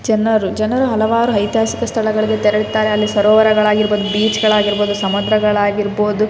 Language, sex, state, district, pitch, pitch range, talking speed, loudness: Kannada, female, Karnataka, Raichur, 215 Hz, 210-220 Hz, 145 wpm, -15 LUFS